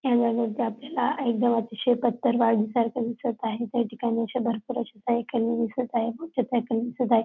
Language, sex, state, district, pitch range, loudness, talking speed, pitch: Marathi, female, Maharashtra, Dhule, 230-245 Hz, -26 LUFS, 155 wpm, 235 Hz